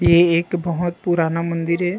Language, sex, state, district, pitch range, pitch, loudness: Chhattisgarhi, male, Chhattisgarh, Rajnandgaon, 170-175 Hz, 170 Hz, -19 LUFS